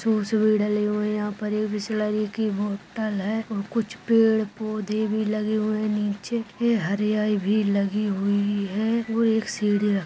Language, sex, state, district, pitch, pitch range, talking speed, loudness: Hindi, female, Maharashtra, Sindhudurg, 215 Hz, 205-220 Hz, 115 wpm, -24 LUFS